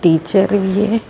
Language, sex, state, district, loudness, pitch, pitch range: Punjabi, female, Karnataka, Bangalore, -15 LUFS, 195 Hz, 180-210 Hz